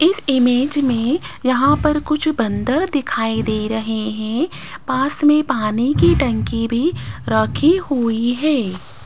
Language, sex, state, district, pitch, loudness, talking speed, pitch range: Hindi, female, Rajasthan, Jaipur, 250 Hz, -18 LUFS, 130 wpm, 220-295 Hz